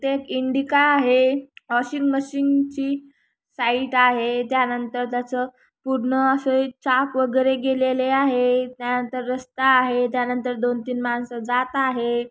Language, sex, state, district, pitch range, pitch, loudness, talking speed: Marathi, female, Maharashtra, Chandrapur, 245-265 Hz, 255 Hz, -21 LUFS, 130 wpm